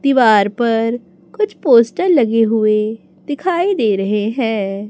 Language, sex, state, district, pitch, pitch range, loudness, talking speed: Hindi, female, Chhattisgarh, Raipur, 225 Hz, 215-275 Hz, -15 LUFS, 120 wpm